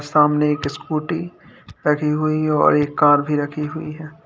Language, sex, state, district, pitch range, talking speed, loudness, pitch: Hindi, male, Uttar Pradesh, Lalitpur, 150-155 Hz, 170 wpm, -19 LUFS, 150 Hz